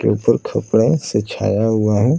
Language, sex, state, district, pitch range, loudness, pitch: Hindi, male, Bihar, Saran, 105-135 Hz, -17 LUFS, 110 Hz